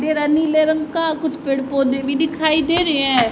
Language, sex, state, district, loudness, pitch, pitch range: Hindi, female, Haryana, Rohtak, -18 LUFS, 310 Hz, 275-315 Hz